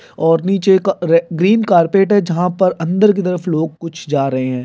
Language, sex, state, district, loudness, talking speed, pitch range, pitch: Hindi, male, Bihar, Jamui, -15 LUFS, 220 wpm, 165-195 Hz, 175 Hz